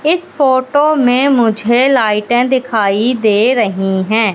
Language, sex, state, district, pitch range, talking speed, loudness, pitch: Hindi, female, Madhya Pradesh, Katni, 215-265 Hz, 125 wpm, -12 LUFS, 240 Hz